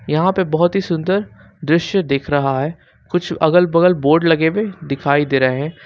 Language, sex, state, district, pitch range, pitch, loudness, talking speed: Hindi, male, Jharkhand, Ranchi, 145-180 Hz, 165 Hz, -16 LUFS, 195 wpm